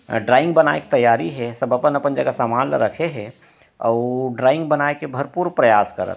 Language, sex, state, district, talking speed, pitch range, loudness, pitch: Chhattisgarhi, male, Chhattisgarh, Rajnandgaon, 225 wpm, 120-150 Hz, -18 LUFS, 130 Hz